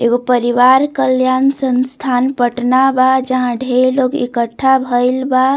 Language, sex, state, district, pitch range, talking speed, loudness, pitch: Bhojpuri, female, Bihar, Muzaffarpur, 245-265 Hz, 130 wpm, -13 LUFS, 255 Hz